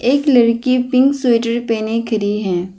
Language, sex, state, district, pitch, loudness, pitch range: Hindi, female, Arunachal Pradesh, Lower Dibang Valley, 235 Hz, -15 LUFS, 220-255 Hz